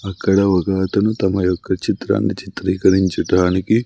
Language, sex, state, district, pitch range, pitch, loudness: Telugu, male, Andhra Pradesh, Sri Satya Sai, 95-100 Hz, 95 Hz, -17 LUFS